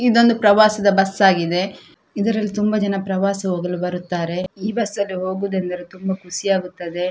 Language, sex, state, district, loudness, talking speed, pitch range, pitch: Kannada, female, Karnataka, Dakshina Kannada, -19 LUFS, 145 wpm, 180-205 Hz, 195 Hz